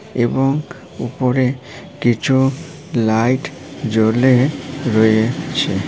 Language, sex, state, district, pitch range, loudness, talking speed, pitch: Bengali, male, West Bengal, Paschim Medinipur, 120-140 Hz, -17 LUFS, 60 wpm, 130 Hz